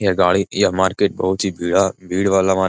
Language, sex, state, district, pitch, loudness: Hindi, male, Bihar, Jamui, 95 Hz, -18 LUFS